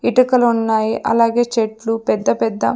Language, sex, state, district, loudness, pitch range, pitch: Telugu, female, Andhra Pradesh, Sri Satya Sai, -16 LUFS, 215-240 Hz, 225 Hz